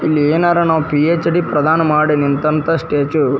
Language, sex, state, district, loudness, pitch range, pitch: Kannada, male, Karnataka, Dharwad, -14 LUFS, 150-165 Hz, 155 Hz